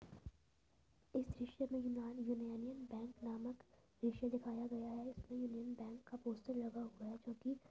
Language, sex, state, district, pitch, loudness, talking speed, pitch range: Hindi, female, Uttar Pradesh, Etah, 235 Hz, -46 LUFS, 165 wpm, 230-245 Hz